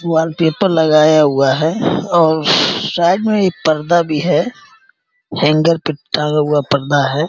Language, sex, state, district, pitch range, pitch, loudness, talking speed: Hindi, male, Uttar Pradesh, Gorakhpur, 150-180 Hz, 160 Hz, -14 LUFS, 140 wpm